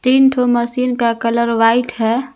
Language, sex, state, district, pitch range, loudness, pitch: Hindi, female, Jharkhand, Garhwa, 230-255 Hz, -15 LUFS, 240 Hz